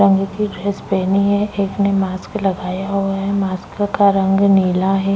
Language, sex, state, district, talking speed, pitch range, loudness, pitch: Hindi, female, Bihar, Vaishali, 175 wpm, 190-200 Hz, -17 LUFS, 195 Hz